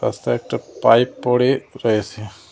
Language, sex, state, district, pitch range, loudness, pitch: Bengali, male, West Bengal, Cooch Behar, 105-125 Hz, -19 LUFS, 115 Hz